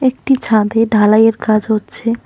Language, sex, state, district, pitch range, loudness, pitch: Bengali, female, West Bengal, Cooch Behar, 215-235 Hz, -13 LUFS, 225 Hz